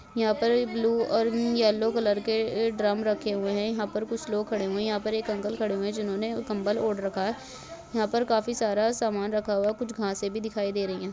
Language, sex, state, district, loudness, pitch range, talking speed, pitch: Hindi, male, Rajasthan, Churu, -27 LUFS, 205-225 Hz, 245 wpm, 215 Hz